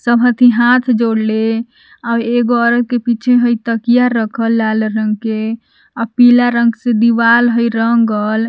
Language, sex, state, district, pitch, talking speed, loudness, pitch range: Magahi, female, Jharkhand, Palamu, 235 Hz, 150 wpm, -13 LUFS, 225-240 Hz